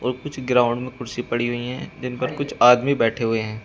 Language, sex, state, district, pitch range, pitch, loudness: Hindi, male, Uttar Pradesh, Shamli, 120-130 Hz, 125 Hz, -21 LUFS